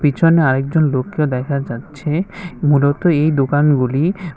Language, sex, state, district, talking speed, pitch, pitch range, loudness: Bengali, male, Tripura, West Tripura, 110 wpm, 145 Hz, 140-160 Hz, -16 LUFS